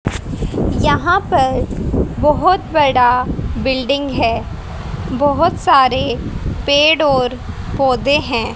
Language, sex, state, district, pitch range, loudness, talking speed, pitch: Hindi, female, Haryana, Rohtak, 260-300 Hz, -15 LUFS, 85 wpm, 280 Hz